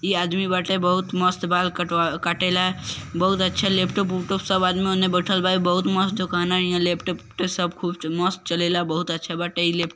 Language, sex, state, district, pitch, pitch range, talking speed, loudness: Bhojpuri, male, Bihar, East Champaran, 180 Hz, 175-185 Hz, 225 wpm, -22 LUFS